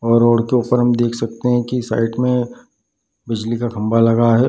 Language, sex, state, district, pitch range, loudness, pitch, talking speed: Hindi, male, Bihar, Darbhanga, 115-125 Hz, -17 LUFS, 120 Hz, 225 wpm